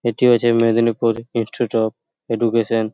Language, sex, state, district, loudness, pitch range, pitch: Bengali, male, West Bengal, Paschim Medinipur, -18 LUFS, 115-120 Hz, 115 Hz